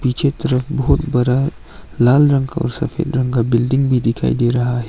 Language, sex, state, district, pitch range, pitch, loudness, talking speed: Hindi, male, Arunachal Pradesh, Longding, 120-140 Hz, 130 Hz, -17 LUFS, 210 wpm